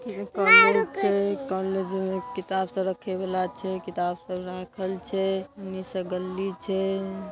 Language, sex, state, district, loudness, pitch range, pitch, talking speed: Maithili, female, Bihar, Darbhanga, -25 LUFS, 185-195 Hz, 190 Hz, 150 wpm